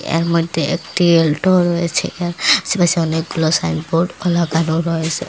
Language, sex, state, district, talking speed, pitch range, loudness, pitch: Bengali, female, Assam, Hailakandi, 135 wpm, 160-175 Hz, -16 LUFS, 170 Hz